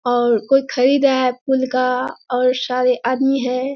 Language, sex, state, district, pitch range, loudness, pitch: Hindi, female, Bihar, Kishanganj, 250-265 Hz, -17 LUFS, 255 Hz